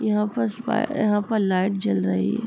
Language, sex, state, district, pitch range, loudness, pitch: Hindi, female, Uttar Pradesh, Jyotiba Phule Nagar, 190-225 Hz, -23 LUFS, 210 Hz